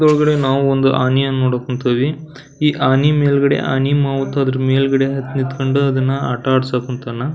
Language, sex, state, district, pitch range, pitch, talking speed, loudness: Kannada, male, Karnataka, Belgaum, 130-140 Hz, 135 Hz, 155 wpm, -16 LUFS